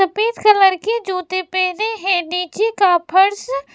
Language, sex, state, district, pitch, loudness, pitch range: Hindi, female, Bihar, West Champaran, 380 Hz, -16 LUFS, 365-425 Hz